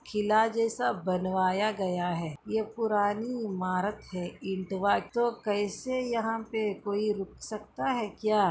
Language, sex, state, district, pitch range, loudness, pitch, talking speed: Hindi, female, Chhattisgarh, Bastar, 190-225 Hz, -30 LUFS, 210 Hz, 140 wpm